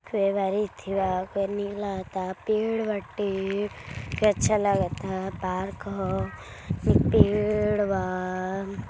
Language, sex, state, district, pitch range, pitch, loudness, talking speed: Hindi, female, Uttar Pradesh, Deoria, 190-205 Hz, 195 Hz, -27 LUFS, 100 wpm